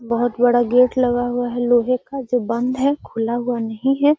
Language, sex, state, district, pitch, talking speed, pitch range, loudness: Magahi, female, Bihar, Gaya, 245 Hz, 215 wpm, 240-255 Hz, -19 LUFS